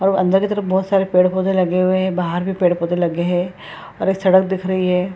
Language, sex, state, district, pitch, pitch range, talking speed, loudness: Hindi, female, Bihar, Purnia, 185 Hz, 180-190 Hz, 245 wpm, -18 LUFS